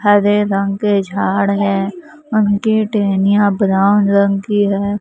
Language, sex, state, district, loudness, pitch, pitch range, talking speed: Hindi, female, Maharashtra, Mumbai Suburban, -15 LUFS, 205 Hz, 200-205 Hz, 130 wpm